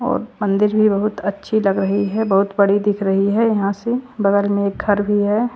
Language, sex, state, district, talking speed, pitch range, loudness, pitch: Hindi, female, Bihar, Katihar, 225 wpm, 200-215 Hz, -18 LUFS, 205 Hz